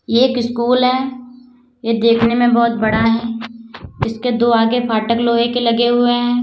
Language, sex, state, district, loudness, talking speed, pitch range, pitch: Hindi, female, Uttar Pradesh, Lalitpur, -15 LUFS, 175 wpm, 230-245 Hz, 235 Hz